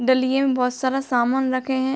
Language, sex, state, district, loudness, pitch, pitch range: Hindi, female, Bihar, Muzaffarpur, -21 LUFS, 260 Hz, 255-265 Hz